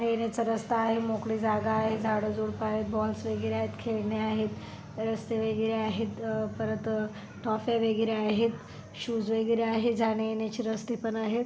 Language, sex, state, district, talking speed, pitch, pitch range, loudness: Marathi, female, Maharashtra, Dhule, 165 wpm, 220 Hz, 215-225 Hz, -30 LUFS